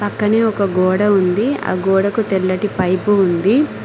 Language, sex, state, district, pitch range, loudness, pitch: Telugu, female, Telangana, Mahabubabad, 185-210 Hz, -16 LUFS, 200 Hz